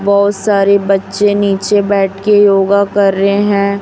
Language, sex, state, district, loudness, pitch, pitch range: Hindi, female, Chhattisgarh, Raipur, -11 LUFS, 200 Hz, 195-205 Hz